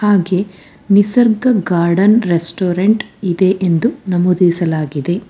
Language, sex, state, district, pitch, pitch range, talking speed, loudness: Kannada, female, Karnataka, Bangalore, 185 Hz, 175-210 Hz, 80 wpm, -14 LUFS